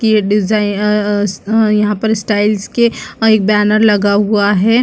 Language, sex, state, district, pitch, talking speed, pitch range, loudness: Hindi, female, Chhattisgarh, Bastar, 210 Hz, 160 wpm, 205-220 Hz, -13 LUFS